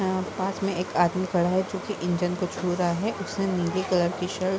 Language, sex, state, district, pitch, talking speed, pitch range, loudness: Hindi, female, Uttar Pradesh, Varanasi, 185 Hz, 250 wpm, 180-190 Hz, -26 LUFS